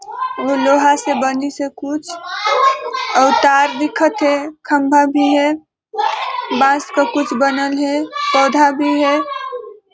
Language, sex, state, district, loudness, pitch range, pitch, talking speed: Hindi, female, Chhattisgarh, Balrampur, -15 LUFS, 280-350 Hz, 290 Hz, 135 wpm